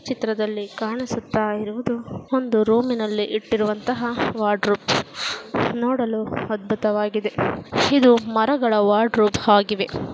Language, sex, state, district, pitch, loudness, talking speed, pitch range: Kannada, female, Karnataka, Gulbarga, 220 Hz, -21 LUFS, 70 wpm, 210-235 Hz